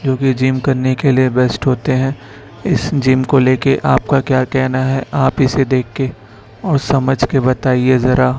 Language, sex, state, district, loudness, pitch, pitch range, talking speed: Hindi, male, Chhattisgarh, Raipur, -15 LUFS, 130 Hz, 130-135 Hz, 200 wpm